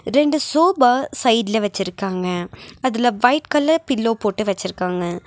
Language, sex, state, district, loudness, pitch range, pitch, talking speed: Tamil, female, Tamil Nadu, Nilgiris, -19 LUFS, 195-285 Hz, 230 Hz, 115 wpm